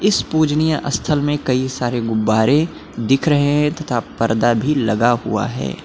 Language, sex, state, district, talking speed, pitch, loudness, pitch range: Hindi, male, Uttar Pradesh, Lucknow, 165 wpm, 130 Hz, -18 LUFS, 115-150 Hz